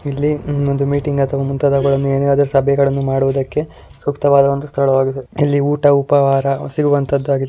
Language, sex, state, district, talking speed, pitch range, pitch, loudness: Kannada, female, Karnataka, Dakshina Kannada, 150 wpm, 135-145 Hz, 140 Hz, -16 LUFS